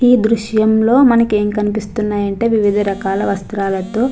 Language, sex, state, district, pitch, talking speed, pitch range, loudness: Telugu, female, Andhra Pradesh, Chittoor, 210 Hz, 130 wpm, 205-230 Hz, -15 LUFS